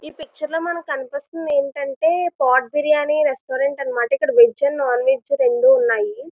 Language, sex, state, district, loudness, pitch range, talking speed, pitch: Telugu, female, Andhra Pradesh, Visakhapatnam, -18 LUFS, 270-325 Hz, 140 wpm, 290 Hz